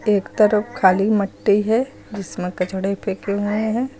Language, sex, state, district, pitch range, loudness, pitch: Hindi, female, Uttar Pradesh, Lucknow, 195-215 Hz, -20 LUFS, 205 Hz